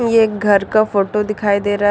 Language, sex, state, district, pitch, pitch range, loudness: Hindi, female, Jharkhand, Deoghar, 210 Hz, 205-215 Hz, -16 LUFS